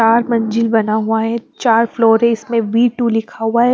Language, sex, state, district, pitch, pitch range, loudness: Hindi, female, Bihar, West Champaran, 230 Hz, 225-235 Hz, -15 LUFS